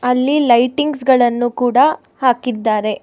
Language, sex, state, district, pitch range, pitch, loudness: Kannada, female, Karnataka, Bangalore, 240-265 Hz, 250 Hz, -15 LUFS